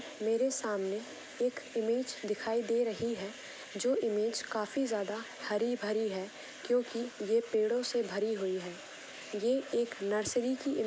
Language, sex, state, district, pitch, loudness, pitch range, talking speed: Hindi, female, Jharkhand, Jamtara, 230 Hz, -34 LUFS, 210-245 Hz, 150 wpm